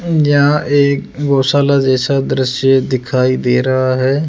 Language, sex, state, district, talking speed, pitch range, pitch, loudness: Hindi, male, Rajasthan, Jaipur, 125 wpm, 130-145 Hz, 135 Hz, -13 LUFS